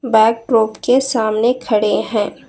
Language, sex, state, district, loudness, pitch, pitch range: Hindi, female, Karnataka, Bangalore, -16 LUFS, 230 Hz, 220-250 Hz